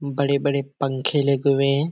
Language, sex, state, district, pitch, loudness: Hindi, male, Bihar, Kishanganj, 140 Hz, -21 LUFS